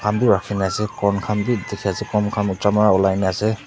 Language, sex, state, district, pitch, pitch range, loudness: Nagamese, male, Nagaland, Dimapur, 105 Hz, 95-105 Hz, -20 LUFS